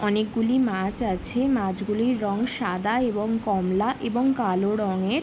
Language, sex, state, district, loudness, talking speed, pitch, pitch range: Bengali, female, West Bengal, Jalpaiguri, -24 LUFS, 125 wpm, 215 Hz, 200-245 Hz